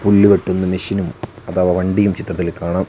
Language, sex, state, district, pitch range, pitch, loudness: Malayalam, male, Kerala, Wayanad, 90-100 Hz, 95 Hz, -17 LUFS